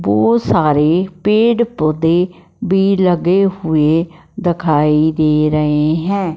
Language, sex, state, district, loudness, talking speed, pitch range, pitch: Hindi, male, Punjab, Fazilka, -14 LUFS, 105 wpm, 150-190 Hz, 165 Hz